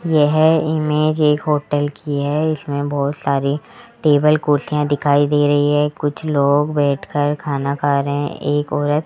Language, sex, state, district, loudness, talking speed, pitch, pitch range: Hindi, female, Rajasthan, Jaipur, -17 LUFS, 160 wpm, 145 Hz, 145-150 Hz